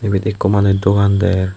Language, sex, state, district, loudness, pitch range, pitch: Chakma, female, Tripura, West Tripura, -15 LUFS, 95-100 Hz, 100 Hz